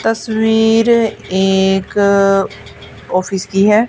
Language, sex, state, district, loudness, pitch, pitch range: Hindi, female, Haryana, Charkhi Dadri, -14 LUFS, 200 Hz, 195-225 Hz